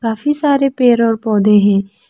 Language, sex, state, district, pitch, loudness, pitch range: Hindi, female, Arunachal Pradesh, Lower Dibang Valley, 225 Hz, -13 LUFS, 210-270 Hz